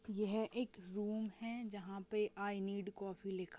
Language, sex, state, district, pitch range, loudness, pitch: Hindi, female, Maharashtra, Nagpur, 195-215 Hz, -43 LUFS, 205 Hz